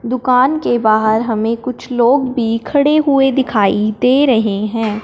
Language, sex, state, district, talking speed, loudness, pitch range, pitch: Hindi, male, Punjab, Fazilka, 155 wpm, -14 LUFS, 220-265 Hz, 240 Hz